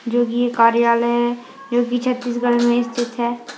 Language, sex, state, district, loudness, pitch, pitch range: Hindi, female, Chhattisgarh, Kabirdham, -18 LUFS, 240 Hz, 235-245 Hz